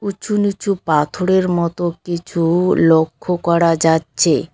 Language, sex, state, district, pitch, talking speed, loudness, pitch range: Bengali, female, West Bengal, Cooch Behar, 170 Hz, 105 wpm, -16 LUFS, 165-185 Hz